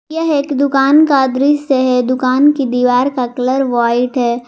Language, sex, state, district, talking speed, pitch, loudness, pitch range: Hindi, female, Jharkhand, Garhwa, 175 wpm, 265 Hz, -13 LUFS, 250-280 Hz